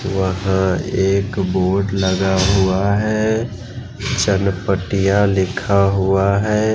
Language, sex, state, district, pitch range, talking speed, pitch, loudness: Hindi, male, Bihar, West Champaran, 95-100 Hz, 90 wpm, 100 Hz, -17 LUFS